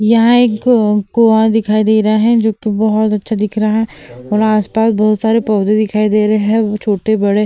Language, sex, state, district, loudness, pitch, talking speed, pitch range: Hindi, female, Uttar Pradesh, Hamirpur, -13 LUFS, 215 Hz, 195 wpm, 210-225 Hz